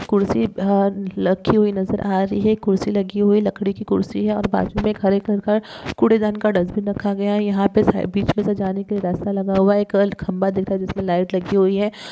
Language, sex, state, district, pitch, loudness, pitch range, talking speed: Hindi, female, Maharashtra, Solapur, 200 Hz, -19 LUFS, 195-210 Hz, 235 wpm